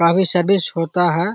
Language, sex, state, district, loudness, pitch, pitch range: Magahi, male, Bihar, Jahanabad, -17 LUFS, 175 Hz, 170-190 Hz